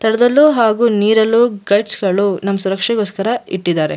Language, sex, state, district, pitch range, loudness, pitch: Kannada, female, Karnataka, Mysore, 195-230 Hz, -14 LUFS, 215 Hz